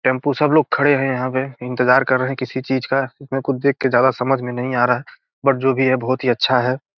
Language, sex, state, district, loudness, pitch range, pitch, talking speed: Hindi, male, Bihar, Gopalganj, -18 LUFS, 125-135 Hz, 130 Hz, 260 wpm